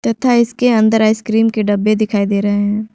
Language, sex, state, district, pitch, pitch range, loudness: Hindi, female, Jharkhand, Ranchi, 215 Hz, 205-225 Hz, -14 LUFS